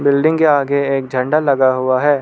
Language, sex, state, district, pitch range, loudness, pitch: Hindi, male, Arunachal Pradesh, Lower Dibang Valley, 130-145 Hz, -15 LUFS, 140 Hz